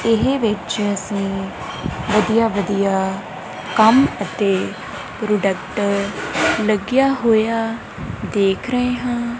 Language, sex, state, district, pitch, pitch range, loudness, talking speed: Punjabi, female, Punjab, Kapurthala, 215 Hz, 200-230 Hz, -19 LUFS, 85 wpm